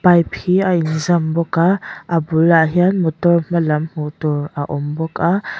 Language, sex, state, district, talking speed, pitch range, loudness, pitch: Mizo, female, Mizoram, Aizawl, 180 wpm, 155-175 Hz, -17 LUFS, 165 Hz